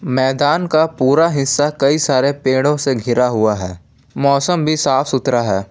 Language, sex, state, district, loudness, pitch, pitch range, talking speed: Hindi, male, Jharkhand, Palamu, -15 LUFS, 135 Hz, 125-145 Hz, 170 wpm